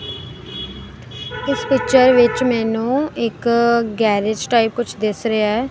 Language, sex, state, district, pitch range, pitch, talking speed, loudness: Punjabi, female, Punjab, Kapurthala, 220-245 Hz, 235 Hz, 115 wpm, -17 LUFS